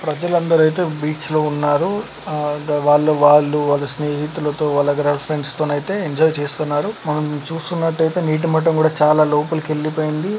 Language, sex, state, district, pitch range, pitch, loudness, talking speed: Telugu, male, Telangana, Karimnagar, 150-160 Hz, 155 Hz, -18 LUFS, 135 wpm